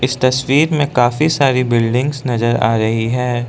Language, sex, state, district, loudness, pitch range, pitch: Hindi, male, Arunachal Pradesh, Lower Dibang Valley, -15 LUFS, 120-135 Hz, 125 Hz